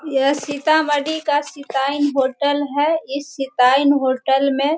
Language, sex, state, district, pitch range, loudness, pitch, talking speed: Hindi, female, Bihar, Sitamarhi, 270-290 Hz, -18 LUFS, 285 Hz, 140 wpm